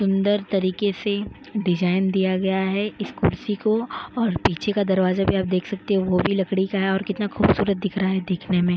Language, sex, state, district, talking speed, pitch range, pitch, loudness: Hindi, female, Goa, North and South Goa, 225 wpm, 190-205 Hz, 195 Hz, -22 LUFS